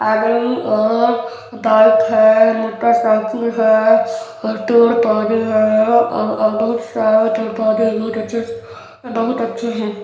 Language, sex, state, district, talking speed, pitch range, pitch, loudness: Hindi, male, Chhattisgarh, Balrampur, 115 wpm, 220-230 Hz, 220 Hz, -15 LUFS